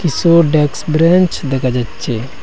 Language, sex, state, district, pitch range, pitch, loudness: Bengali, male, Assam, Hailakandi, 135-170 Hz, 150 Hz, -14 LUFS